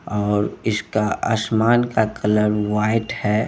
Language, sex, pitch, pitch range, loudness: Bhojpuri, male, 110 Hz, 105-115 Hz, -20 LUFS